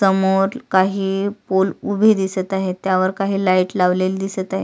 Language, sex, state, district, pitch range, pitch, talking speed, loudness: Marathi, female, Maharashtra, Sindhudurg, 185-195 Hz, 190 Hz, 155 wpm, -18 LUFS